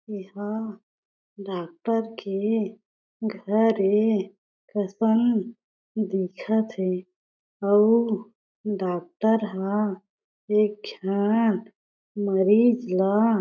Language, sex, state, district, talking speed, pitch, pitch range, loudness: Chhattisgarhi, female, Chhattisgarh, Jashpur, 70 wpm, 210 Hz, 195-220 Hz, -24 LUFS